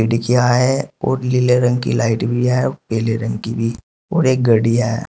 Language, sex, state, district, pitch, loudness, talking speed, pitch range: Hindi, male, Uttar Pradesh, Shamli, 120 Hz, -17 LUFS, 210 wpm, 115-125 Hz